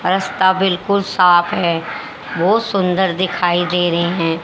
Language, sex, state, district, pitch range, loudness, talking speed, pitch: Hindi, female, Haryana, Jhajjar, 175-190 Hz, -16 LUFS, 135 wpm, 180 Hz